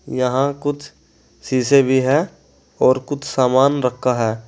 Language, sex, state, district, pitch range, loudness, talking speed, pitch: Hindi, male, Uttar Pradesh, Saharanpur, 125-145 Hz, -18 LUFS, 135 wpm, 130 Hz